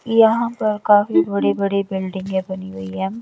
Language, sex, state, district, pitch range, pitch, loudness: Hindi, female, Bihar, West Champaran, 175-215 Hz, 195 Hz, -19 LUFS